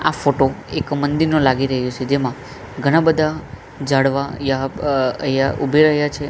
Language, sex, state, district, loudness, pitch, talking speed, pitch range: Gujarati, male, Gujarat, Gandhinagar, -18 LUFS, 140 Hz, 145 wpm, 135-150 Hz